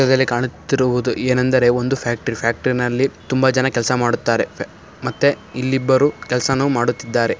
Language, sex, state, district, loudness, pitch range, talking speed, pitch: Kannada, male, Karnataka, Shimoga, -18 LUFS, 120-135 Hz, 130 wpm, 130 Hz